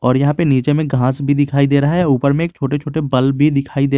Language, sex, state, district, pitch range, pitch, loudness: Hindi, male, Jharkhand, Garhwa, 135-145 Hz, 140 Hz, -15 LUFS